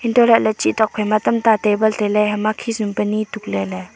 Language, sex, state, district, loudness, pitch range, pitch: Wancho, female, Arunachal Pradesh, Longding, -18 LUFS, 210-220 Hz, 215 Hz